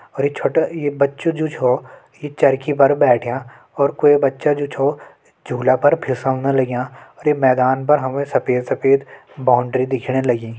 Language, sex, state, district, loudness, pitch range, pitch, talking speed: Hindi, male, Uttarakhand, Tehri Garhwal, -18 LUFS, 130-145 Hz, 135 Hz, 175 wpm